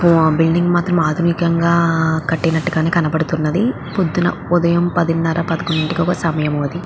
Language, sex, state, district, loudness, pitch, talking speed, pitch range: Telugu, female, Andhra Pradesh, Visakhapatnam, -16 LUFS, 170 Hz, 115 wpm, 160-175 Hz